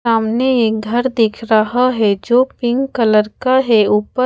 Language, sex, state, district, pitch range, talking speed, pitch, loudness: Hindi, female, Odisha, Khordha, 220-250 Hz, 170 wpm, 230 Hz, -15 LUFS